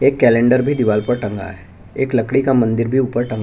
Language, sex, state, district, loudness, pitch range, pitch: Hindi, male, Chhattisgarh, Bastar, -16 LUFS, 105-130 Hz, 120 Hz